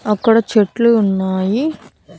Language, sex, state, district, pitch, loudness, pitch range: Telugu, female, Andhra Pradesh, Annamaya, 215 Hz, -15 LUFS, 200-235 Hz